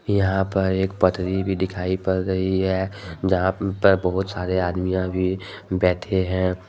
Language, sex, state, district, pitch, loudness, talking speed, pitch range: Hindi, male, Jharkhand, Deoghar, 95 Hz, -22 LUFS, 155 wpm, 90-95 Hz